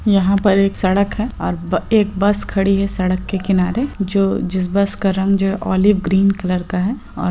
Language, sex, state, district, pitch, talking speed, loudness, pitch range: Hindi, female, Bihar, Purnia, 195 Hz, 230 wpm, -17 LUFS, 190-200 Hz